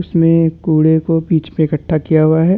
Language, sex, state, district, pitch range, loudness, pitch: Hindi, male, Chhattisgarh, Bastar, 155-165 Hz, -14 LUFS, 160 Hz